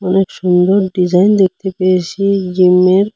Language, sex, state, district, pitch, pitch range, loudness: Bengali, male, Assam, Hailakandi, 185 Hz, 180-195 Hz, -12 LUFS